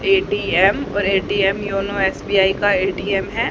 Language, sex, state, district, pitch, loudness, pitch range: Hindi, female, Haryana, Charkhi Dadri, 200 Hz, -18 LUFS, 195-205 Hz